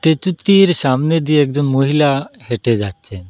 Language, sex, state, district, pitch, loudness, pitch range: Bengali, male, Assam, Hailakandi, 140 Hz, -15 LUFS, 125-160 Hz